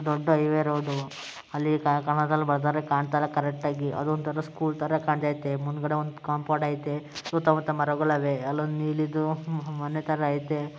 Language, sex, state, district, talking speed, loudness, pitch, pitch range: Kannada, male, Karnataka, Mysore, 160 wpm, -27 LUFS, 150 Hz, 145-155 Hz